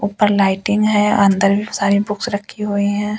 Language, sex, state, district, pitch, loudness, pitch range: Hindi, female, Delhi, New Delhi, 205 Hz, -16 LUFS, 200-210 Hz